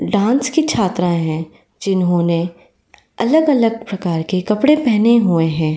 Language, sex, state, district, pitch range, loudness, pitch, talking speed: Hindi, female, Uttar Pradesh, Varanasi, 170-235 Hz, -16 LUFS, 195 Hz, 125 wpm